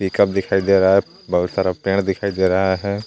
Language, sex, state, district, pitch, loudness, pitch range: Hindi, male, Jharkhand, Garhwa, 95 Hz, -18 LUFS, 95-100 Hz